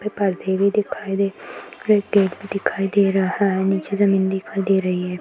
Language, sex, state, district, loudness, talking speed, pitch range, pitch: Hindi, female, Uttar Pradesh, Ghazipur, -20 LUFS, 205 wpm, 190-200 Hz, 195 Hz